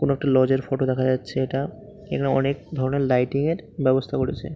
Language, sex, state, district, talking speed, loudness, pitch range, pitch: Bengali, male, West Bengal, Paschim Medinipur, 195 wpm, -23 LUFS, 130-140 Hz, 135 Hz